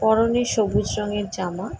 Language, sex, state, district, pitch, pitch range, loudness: Bengali, female, West Bengal, Jalpaiguri, 210 Hz, 195-225 Hz, -23 LUFS